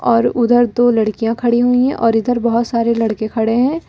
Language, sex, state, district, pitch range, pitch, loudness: Hindi, female, Uttar Pradesh, Lucknow, 225-245 Hz, 235 Hz, -15 LUFS